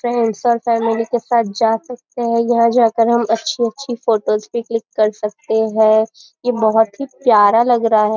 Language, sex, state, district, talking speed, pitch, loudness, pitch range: Hindi, female, Maharashtra, Nagpur, 190 wpm, 230 Hz, -16 LUFS, 220-240 Hz